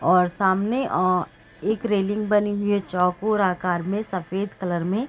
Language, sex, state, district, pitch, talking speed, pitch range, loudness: Hindi, female, Uttar Pradesh, Gorakhpur, 195 Hz, 165 wpm, 180-210 Hz, -23 LUFS